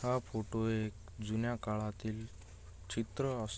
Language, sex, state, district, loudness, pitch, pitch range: Marathi, male, Maharashtra, Aurangabad, -39 LUFS, 110 Hz, 105-115 Hz